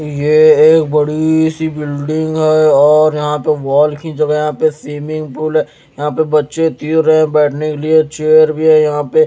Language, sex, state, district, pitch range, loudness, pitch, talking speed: Hindi, male, Bihar, Patna, 150-155 Hz, -12 LUFS, 155 Hz, 200 wpm